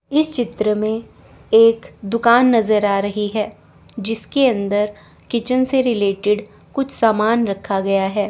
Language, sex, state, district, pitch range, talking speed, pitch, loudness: Hindi, female, Chandigarh, Chandigarh, 205-235 Hz, 135 wpm, 220 Hz, -18 LUFS